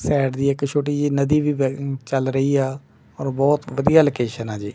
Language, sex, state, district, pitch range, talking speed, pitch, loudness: Punjabi, male, Punjab, Kapurthala, 135-145 Hz, 215 wpm, 135 Hz, -20 LUFS